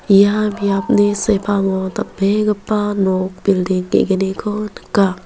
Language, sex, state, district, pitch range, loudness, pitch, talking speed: Garo, female, Meghalaya, West Garo Hills, 190-210 Hz, -17 LUFS, 200 Hz, 90 wpm